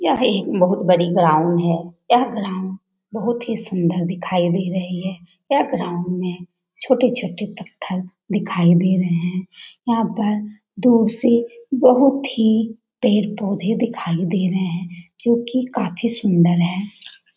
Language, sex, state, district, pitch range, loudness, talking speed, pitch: Hindi, female, Bihar, Jamui, 180-230 Hz, -19 LUFS, 140 wpm, 195 Hz